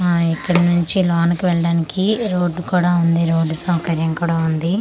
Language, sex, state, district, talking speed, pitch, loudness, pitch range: Telugu, female, Andhra Pradesh, Manyam, 150 wpm, 170 Hz, -18 LUFS, 165-180 Hz